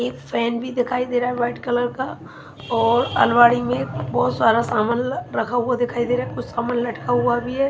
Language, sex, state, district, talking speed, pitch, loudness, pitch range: Hindi, female, Himachal Pradesh, Shimla, 220 wpm, 245 Hz, -20 LUFS, 235-245 Hz